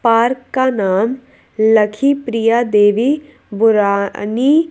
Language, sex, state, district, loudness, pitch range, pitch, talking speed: Hindi, female, Madhya Pradesh, Bhopal, -15 LUFS, 210-260 Hz, 230 Hz, 90 wpm